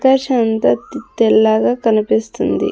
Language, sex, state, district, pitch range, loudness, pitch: Telugu, female, Andhra Pradesh, Sri Satya Sai, 220-250 Hz, -15 LUFS, 225 Hz